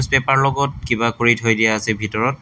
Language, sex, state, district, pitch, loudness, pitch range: Assamese, male, Assam, Hailakandi, 120 Hz, -17 LUFS, 110-135 Hz